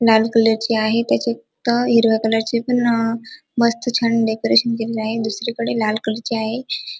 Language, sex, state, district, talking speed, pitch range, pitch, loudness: Marathi, female, Maharashtra, Dhule, 145 wpm, 225-235 Hz, 230 Hz, -19 LUFS